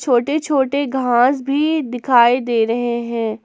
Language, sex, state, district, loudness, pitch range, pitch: Hindi, female, Jharkhand, Palamu, -17 LUFS, 235-280 Hz, 250 Hz